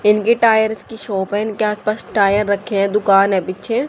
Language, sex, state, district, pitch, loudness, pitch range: Hindi, female, Haryana, Charkhi Dadri, 210 Hz, -16 LUFS, 200-220 Hz